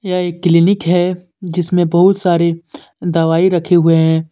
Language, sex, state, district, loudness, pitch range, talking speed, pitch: Hindi, male, Jharkhand, Deoghar, -13 LUFS, 170-180 Hz, 155 wpm, 175 Hz